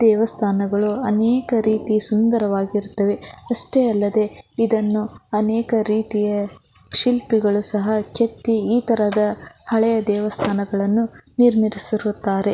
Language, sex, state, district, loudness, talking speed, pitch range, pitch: Kannada, female, Karnataka, Belgaum, -19 LUFS, 80 wpm, 205-225 Hz, 215 Hz